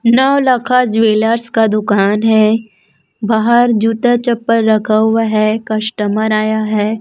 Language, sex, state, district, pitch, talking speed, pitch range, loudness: Hindi, female, Chhattisgarh, Raipur, 220 Hz, 120 wpm, 215-230 Hz, -13 LUFS